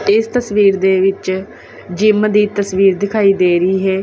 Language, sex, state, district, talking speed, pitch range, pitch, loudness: Punjabi, female, Punjab, Kapurthala, 165 wpm, 190-210 Hz, 195 Hz, -14 LUFS